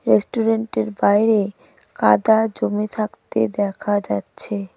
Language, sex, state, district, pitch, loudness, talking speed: Bengali, female, West Bengal, Cooch Behar, 205 Hz, -20 LUFS, 90 wpm